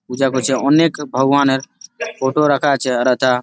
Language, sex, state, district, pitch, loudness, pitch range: Bengali, male, West Bengal, Malda, 135 Hz, -16 LUFS, 130-145 Hz